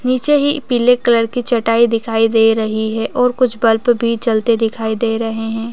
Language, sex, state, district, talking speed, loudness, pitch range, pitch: Hindi, female, Uttar Pradesh, Jyotiba Phule Nagar, 190 wpm, -15 LUFS, 225-245 Hz, 230 Hz